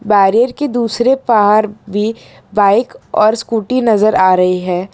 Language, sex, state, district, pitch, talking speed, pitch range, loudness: Hindi, female, Gujarat, Valsad, 215 Hz, 145 wpm, 200-235 Hz, -13 LUFS